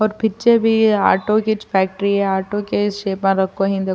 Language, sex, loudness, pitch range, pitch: Urdu, female, -17 LUFS, 195-215 Hz, 200 Hz